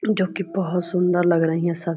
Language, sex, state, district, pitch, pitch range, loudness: Hindi, female, Bihar, Purnia, 175 Hz, 170-190 Hz, -21 LUFS